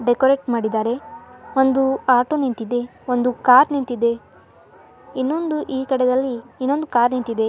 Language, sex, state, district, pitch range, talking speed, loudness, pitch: Kannada, male, Karnataka, Dharwad, 240-270 Hz, 110 wpm, -19 LUFS, 255 Hz